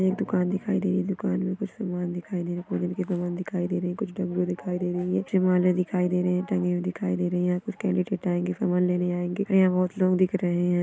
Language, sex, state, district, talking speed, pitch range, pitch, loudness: Hindi, female, Maharashtra, Nagpur, 260 wpm, 180-190 Hz, 180 Hz, -26 LUFS